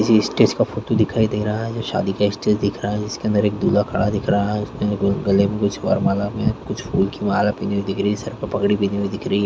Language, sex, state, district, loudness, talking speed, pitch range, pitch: Hindi, male, Chhattisgarh, Korba, -20 LUFS, 285 wpm, 100-105 Hz, 105 Hz